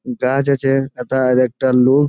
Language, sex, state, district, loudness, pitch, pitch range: Bengali, male, West Bengal, Jalpaiguri, -16 LUFS, 130 Hz, 125-135 Hz